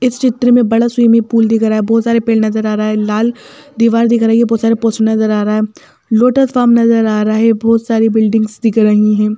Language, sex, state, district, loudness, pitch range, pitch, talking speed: Hindi, female, Madhya Pradesh, Bhopal, -12 LUFS, 220-230 Hz, 225 Hz, 260 wpm